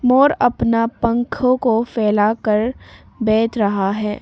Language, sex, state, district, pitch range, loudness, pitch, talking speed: Hindi, female, Arunachal Pradesh, Papum Pare, 210-240 Hz, -17 LUFS, 230 Hz, 130 wpm